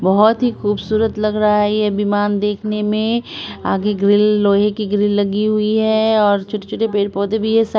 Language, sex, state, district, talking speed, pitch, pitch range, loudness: Hindi, female, Bihar, Saharsa, 195 wpm, 210 Hz, 205-215 Hz, -16 LUFS